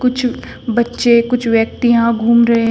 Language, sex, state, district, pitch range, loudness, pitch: Hindi, female, Uttar Pradesh, Shamli, 230-245 Hz, -14 LUFS, 235 Hz